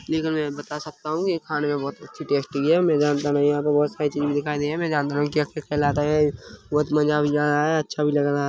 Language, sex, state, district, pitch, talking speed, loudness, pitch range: Hindi, male, Chhattisgarh, Rajnandgaon, 150 Hz, 310 wpm, -23 LUFS, 145-150 Hz